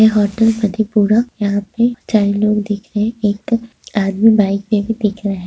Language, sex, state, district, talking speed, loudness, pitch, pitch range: Hindi, female, Bihar, Madhepura, 175 wpm, -16 LUFS, 210 Hz, 205-225 Hz